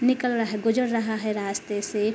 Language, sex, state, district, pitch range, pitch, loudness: Hindi, female, Uttar Pradesh, Hamirpur, 210-235 Hz, 220 Hz, -26 LUFS